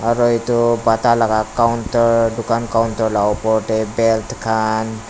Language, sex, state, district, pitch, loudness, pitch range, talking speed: Nagamese, male, Nagaland, Dimapur, 115 Hz, -17 LUFS, 110-115 Hz, 140 wpm